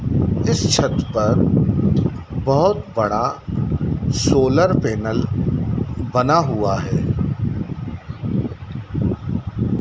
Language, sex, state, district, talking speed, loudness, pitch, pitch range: Hindi, male, Madhya Pradesh, Dhar, 60 wpm, -19 LUFS, 130 Hz, 110-140 Hz